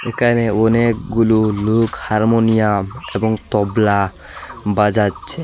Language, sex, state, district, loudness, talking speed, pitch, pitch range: Bengali, male, Assam, Hailakandi, -16 LUFS, 75 wpm, 110 Hz, 105-115 Hz